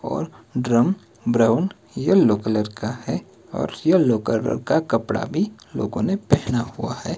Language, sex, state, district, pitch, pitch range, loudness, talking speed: Hindi, male, Himachal Pradesh, Shimla, 120 Hz, 110-145 Hz, -22 LUFS, 150 wpm